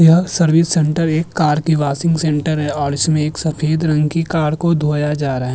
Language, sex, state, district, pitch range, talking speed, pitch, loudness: Hindi, male, Maharashtra, Chandrapur, 150-165 Hz, 215 wpm, 155 Hz, -16 LUFS